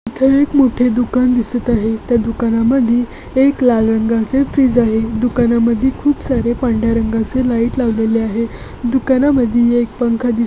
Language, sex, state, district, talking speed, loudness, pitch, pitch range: Marathi, female, Maharashtra, Nagpur, 145 wpm, -15 LUFS, 240 Hz, 230-255 Hz